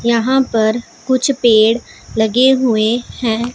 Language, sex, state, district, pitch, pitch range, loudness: Hindi, female, Punjab, Pathankot, 235 Hz, 225-255 Hz, -14 LUFS